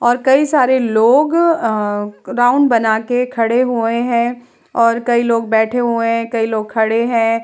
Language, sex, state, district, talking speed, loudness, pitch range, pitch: Hindi, female, Bihar, Vaishali, 160 wpm, -15 LUFS, 225-245 Hz, 235 Hz